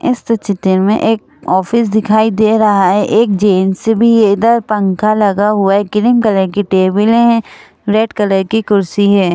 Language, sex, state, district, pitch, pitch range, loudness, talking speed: Hindi, female, Madhya Pradesh, Bhopal, 210 Hz, 200-225 Hz, -12 LUFS, 180 wpm